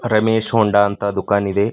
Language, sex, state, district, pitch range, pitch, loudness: Kannada, male, Karnataka, Bidar, 100-110 Hz, 100 Hz, -17 LUFS